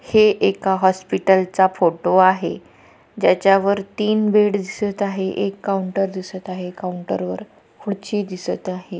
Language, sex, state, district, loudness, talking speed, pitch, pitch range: Marathi, female, Maharashtra, Pune, -19 LUFS, 140 wpm, 190 Hz, 185-200 Hz